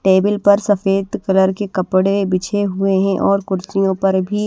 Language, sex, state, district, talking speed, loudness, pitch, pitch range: Hindi, female, Haryana, Rohtak, 175 wpm, -16 LUFS, 195 Hz, 190-200 Hz